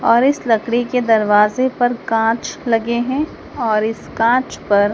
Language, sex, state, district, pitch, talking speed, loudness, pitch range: Hindi, female, Madhya Pradesh, Dhar, 230 Hz, 145 wpm, -17 LUFS, 225-250 Hz